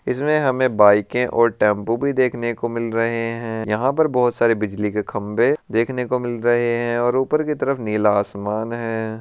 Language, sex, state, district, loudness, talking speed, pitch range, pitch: Marwari, male, Rajasthan, Churu, -20 LUFS, 180 wpm, 110-125 Hz, 115 Hz